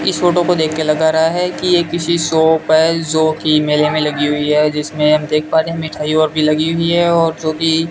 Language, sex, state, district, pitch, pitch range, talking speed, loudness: Hindi, male, Rajasthan, Bikaner, 160 Hz, 155-165 Hz, 260 wpm, -14 LUFS